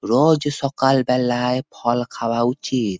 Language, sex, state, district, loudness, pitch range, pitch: Bengali, male, West Bengal, Purulia, -20 LUFS, 120-135 Hz, 125 Hz